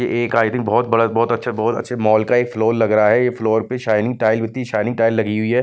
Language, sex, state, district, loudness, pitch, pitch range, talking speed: Hindi, male, Chandigarh, Chandigarh, -17 LUFS, 115 Hz, 110-120 Hz, 265 wpm